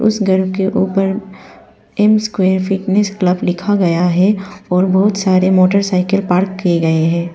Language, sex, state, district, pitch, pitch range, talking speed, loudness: Hindi, female, Arunachal Pradesh, Papum Pare, 190 Hz, 180-200 Hz, 155 wpm, -14 LUFS